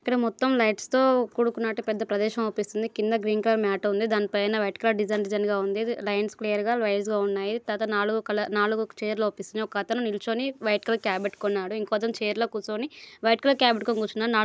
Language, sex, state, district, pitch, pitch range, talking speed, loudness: Telugu, female, Andhra Pradesh, Guntur, 215 Hz, 210-230 Hz, 190 wpm, -26 LUFS